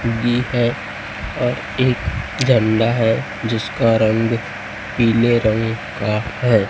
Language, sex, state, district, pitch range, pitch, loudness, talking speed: Hindi, male, Chhattisgarh, Raipur, 110-120 Hz, 115 Hz, -18 LUFS, 105 wpm